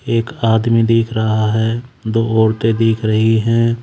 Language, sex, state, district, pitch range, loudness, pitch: Hindi, male, Haryana, Charkhi Dadri, 110-115 Hz, -15 LUFS, 115 Hz